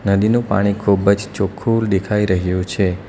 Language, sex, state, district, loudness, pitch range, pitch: Gujarati, male, Gujarat, Valsad, -17 LUFS, 95-105 Hz, 100 Hz